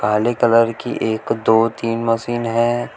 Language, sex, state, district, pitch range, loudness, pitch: Hindi, male, Uttar Pradesh, Shamli, 115-120 Hz, -18 LUFS, 115 Hz